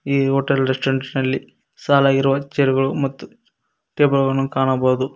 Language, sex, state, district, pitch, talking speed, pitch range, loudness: Kannada, male, Karnataka, Koppal, 135 Hz, 115 wpm, 135-140 Hz, -19 LUFS